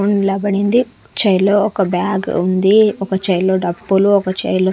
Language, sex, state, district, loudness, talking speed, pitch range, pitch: Telugu, female, Andhra Pradesh, Sri Satya Sai, -15 LUFS, 175 wpm, 190-205 Hz, 195 Hz